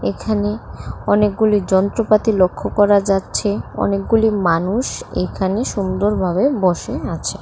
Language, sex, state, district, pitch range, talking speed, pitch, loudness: Bengali, female, Tripura, West Tripura, 185-215 Hz, 95 wpm, 205 Hz, -18 LUFS